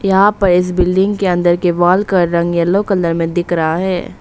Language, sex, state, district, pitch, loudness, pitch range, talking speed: Hindi, female, Arunachal Pradesh, Papum Pare, 180 Hz, -14 LUFS, 175-190 Hz, 225 wpm